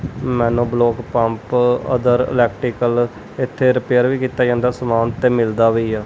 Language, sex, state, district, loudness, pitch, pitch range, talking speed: Punjabi, male, Punjab, Kapurthala, -17 LUFS, 120 Hz, 115-125 Hz, 140 wpm